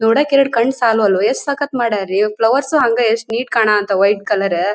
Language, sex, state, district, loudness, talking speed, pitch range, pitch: Kannada, female, Karnataka, Dharwad, -15 LUFS, 190 wpm, 205-245 Hz, 225 Hz